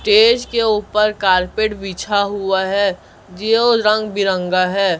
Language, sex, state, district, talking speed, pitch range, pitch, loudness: Hindi, male, Chhattisgarh, Raipur, 130 wpm, 190-215 Hz, 205 Hz, -16 LUFS